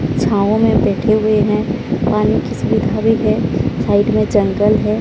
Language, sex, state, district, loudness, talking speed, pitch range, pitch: Hindi, male, Odisha, Sambalpur, -15 LUFS, 165 wpm, 205-215 Hz, 210 Hz